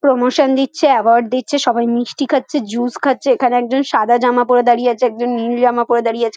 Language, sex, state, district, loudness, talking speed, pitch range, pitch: Bengali, female, West Bengal, Kolkata, -15 LUFS, 205 wpm, 240-270 Hz, 245 Hz